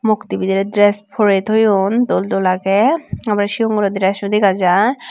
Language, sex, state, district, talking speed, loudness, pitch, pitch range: Chakma, female, Tripura, Unakoti, 165 wpm, -15 LUFS, 205 Hz, 195-215 Hz